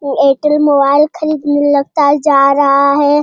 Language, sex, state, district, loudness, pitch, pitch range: Hindi, male, Bihar, Jamui, -11 LUFS, 290 Hz, 280-295 Hz